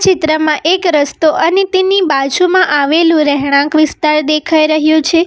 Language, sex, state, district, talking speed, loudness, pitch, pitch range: Gujarati, female, Gujarat, Valsad, 135 wpm, -11 LUFS, 310 Hz, 300-345 Hz